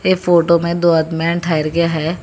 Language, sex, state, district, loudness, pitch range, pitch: Hindi, female, Telangana, Hyderabad, -15 LUFS, 160-170 Hz, 170 Hz